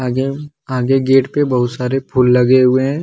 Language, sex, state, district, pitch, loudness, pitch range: Hindi, male, Jharkhand, Deoghar, 130 Hz, -14 LUFS, 125-135 Hz